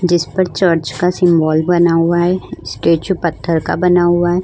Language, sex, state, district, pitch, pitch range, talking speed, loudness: Hindi, female, Goa, North and South Goa, 175 Hz, 165-180 Hz, 190 wpm, -14 LUFS